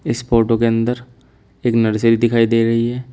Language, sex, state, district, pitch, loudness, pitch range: Hindi, male, Uttar Pradesh, Shamli, 115 Hz, -16 LUFS, 115-120 Hz